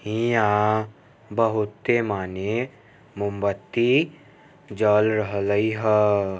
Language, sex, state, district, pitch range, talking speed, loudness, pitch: Maithili, male, Bihar, Samastipur, 105-115 Hz, 75 wpm, -23 LUFS, 110 Hz